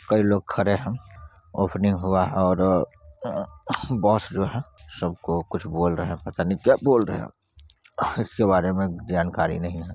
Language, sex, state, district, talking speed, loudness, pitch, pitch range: Hindi, male, Bihar, Saran, 180 wpm, -24 LUFS, 95 Hz, 85-100 Hz